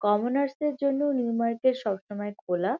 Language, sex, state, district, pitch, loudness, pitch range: Bengali, female, West Bengal, Kolkata, 230 Hz, -27 LUFS, 205-275 Hz